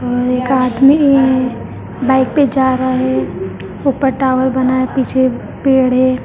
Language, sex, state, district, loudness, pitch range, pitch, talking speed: Hindi, female, Maharashtra, Mumbai Suburban, -14 LUFS, 255-265 Hz, 260 Hz, 145 wpm